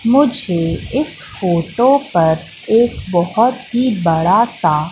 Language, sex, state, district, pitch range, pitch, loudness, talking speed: Hindi, female, Madhya Pradesh, Katni, 170-250 Hz, 230 Hz, -15 LUFS, 110 wpm